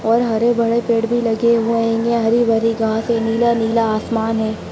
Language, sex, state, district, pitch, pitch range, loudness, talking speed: Hindi, female, Bihar, Sitamarhi, 230 Hz, 225-235 Hz, -17 LUFS, 180 wpm